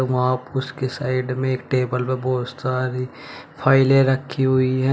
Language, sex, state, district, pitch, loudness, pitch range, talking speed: Hindi, male, Uttar Pradesh, Shamli, 130 Hz, -21 LUFS, 125-130 Hz, 160 wpm